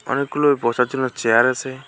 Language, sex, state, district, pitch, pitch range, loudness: Bengali, male, West Bengal, Alipurduar, 130 Hz, 120-140 Hz, -19 LUFS